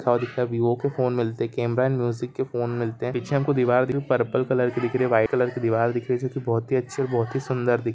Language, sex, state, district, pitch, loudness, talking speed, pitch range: Hindi, male, Jharkhand, Jamtara, 125 Hz, -24 LUFS, 300 wpm, 120-130 Hz